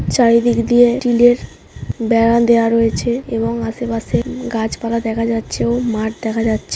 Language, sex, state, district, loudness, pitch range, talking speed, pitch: Bengali, female, West Bengal, Jhargram, -16 LUFS, 225-240 Hz, 135 wpm, 230 Hz